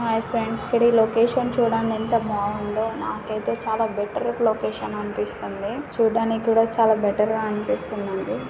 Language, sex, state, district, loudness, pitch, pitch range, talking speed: Telugu, female, Telangana, Karimnagar, -23 LUFS, 225 Hz, 210-230 Hz, 150 wpm